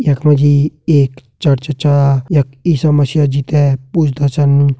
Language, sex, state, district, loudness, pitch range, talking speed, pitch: Hindi, male, Uttarakhand, Tehri Garhwal, -13 LUFS, 140-150 Hz, 160 wpm, 145 Hz